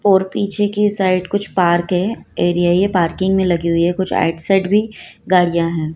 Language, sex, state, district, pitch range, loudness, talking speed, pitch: Hindi, female, Madhya Pradesh, Dhar, 175-200 Hz, -16 LUFS, 200 wpm, 185 Hz